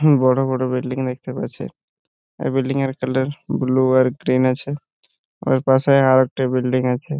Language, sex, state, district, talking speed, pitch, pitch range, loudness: Bengali, male, West Bengal, Purulia, 175 wpm, 130 Hz, 130-135 Hz, -19 LUFS